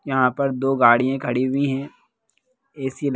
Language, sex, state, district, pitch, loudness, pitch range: Hindi, male, Bihar, Jahanabad, 135 Hz, -20 LUFS, 130-140 Hz